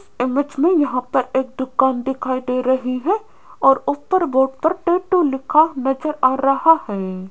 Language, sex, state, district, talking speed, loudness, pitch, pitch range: Hindi, female, Rajasthan, Jaipur, 165 wpm, -18 LUFS, 270 Hz, 255-325 Hz